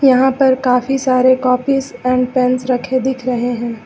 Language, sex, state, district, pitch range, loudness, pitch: Hindi, female, Uttar Pradesh, Lucknow, 250-265 Hz, -15 LUFS, 255 Hz